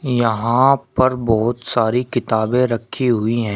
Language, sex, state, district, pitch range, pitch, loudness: Hindi, male, Uttar Pradesh, Shamli, 115-125 Hz, 120 Hz, -18 LUFS